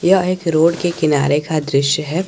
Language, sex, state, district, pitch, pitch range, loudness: Hindi, male, Jharkhand, Garhwa, 160 Hz, 150-175 Hz, -16 LUFS